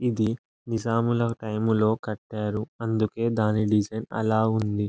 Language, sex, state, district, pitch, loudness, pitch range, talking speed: Telugu, male, Andhra Pradesh, Anantapur, 110 Hz, -26 LUFS, 110-115 Hz, 120 wpm